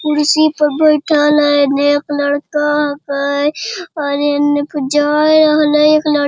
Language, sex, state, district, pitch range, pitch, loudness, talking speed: Hindi, male, Bihar, Jamui, 290-305 Hz, 295 Hz, -13 LUFS, 155 wpm